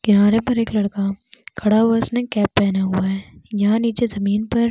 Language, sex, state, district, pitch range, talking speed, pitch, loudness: Hindi, female, Chhattisgarh, Bastar, 200-230 Hz, 190 wpm, 210 Hz, -19 LUFS